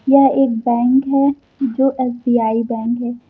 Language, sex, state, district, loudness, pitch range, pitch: Hindi, female, Uttar Pradesh, Lucknow, -16 LUFS, 240-270 Hz, 250 Hz